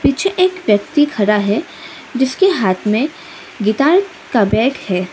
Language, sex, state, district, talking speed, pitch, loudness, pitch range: Hindi, female, Arunachal Pradesh, Lower Dibang Valley, 140 wpm, 260 Hz, -15 LUFS, 210-320 Hz